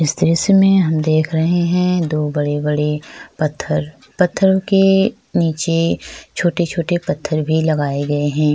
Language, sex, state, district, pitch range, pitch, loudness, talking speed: Hindi, female, Chhattisgarh, Sukma, 150-180 Hz, 160 Hz, -17 LUFS, 160 wpm